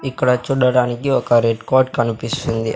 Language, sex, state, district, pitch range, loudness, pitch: Telugu, male, Andhra Pradesh, Sri Satya Sai, 115-130 Hz, -17 LUFS, 125 Hz